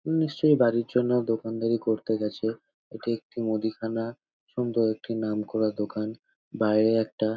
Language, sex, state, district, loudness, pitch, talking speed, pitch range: Bengali, male, West Bengal, North 24 Parganas, -27 LUFS, 110 Hz, 130 wpm, 110-115 Hz